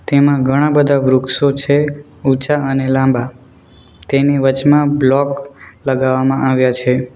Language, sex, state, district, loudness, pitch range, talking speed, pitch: Gujarati, male, Gujarat, Valsad, -14 LUFS, 130-140 Hz, 115 wpm, 135 Hz